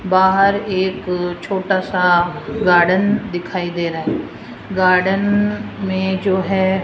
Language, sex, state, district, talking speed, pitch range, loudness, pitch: Hindi, female, Rajasthan, Jaipur, 125 wpm, 180-195 Hz, -17 LUFS, 190 Hz